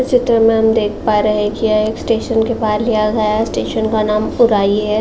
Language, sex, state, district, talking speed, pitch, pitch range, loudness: Hindi, female, Uttar Pradesh, Jalaun, 240 wpm, 220 Hz, 210-225 Hz, -15 LUFS